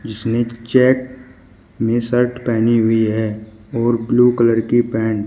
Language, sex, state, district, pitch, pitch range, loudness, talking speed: Hindi, male, Uttar Pradesh, Shamli, 115 Hz, 110-120 Hz, -17 LUFS, 150 wpm